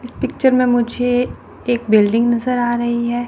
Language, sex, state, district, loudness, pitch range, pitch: Hindi, female, Chandigarh, Chandigarh, -17 LUFS, 235-250 Hz, 240 Hz